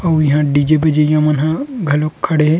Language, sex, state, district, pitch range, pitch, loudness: Chhattisgarhi, male, Chhattisgarh, Rajnandgaon, 150-160 Hz, 155 Hz, -14 LUFS